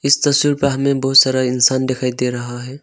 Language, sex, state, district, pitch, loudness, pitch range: Hindi, male, Arunachal Pradesh, Longding, 130 Hz, -15 LUFS, 125-140 Hz